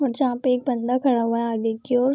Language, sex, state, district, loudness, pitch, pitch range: Hindi, female, Bihar, Vaishali, -22 LUFS, 250 Hz, 235-260 Hz